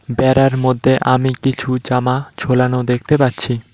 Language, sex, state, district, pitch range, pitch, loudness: Bengali, male, West Bengal, Cooch Behar, 125-130 Hz, 130 Hz, -16 LUFS